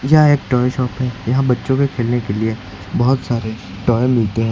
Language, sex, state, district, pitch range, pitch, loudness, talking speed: Hindi, male, Uttar Pradesh, Lucknow, 110-130 Hz, 125 Hz, -17 LUFS, 210 wpm